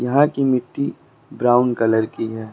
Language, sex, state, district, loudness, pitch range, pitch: Hindi, male, Uttar Pradesh, Lucknow, -19 LUFS, 115-135 Hz, 125 Hz